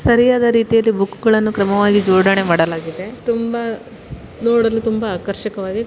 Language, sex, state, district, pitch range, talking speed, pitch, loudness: Kannada, male, Karnataka, Mysore, 195-230 Hz, 100 wpm, 220 Hz, -16 LUFS